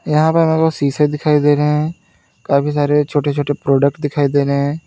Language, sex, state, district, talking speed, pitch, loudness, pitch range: Hindi, male, Uttar Pradesh, Lalitpur, 220 wpm, 145 Hz, -15 LUFS, 145-150 Hz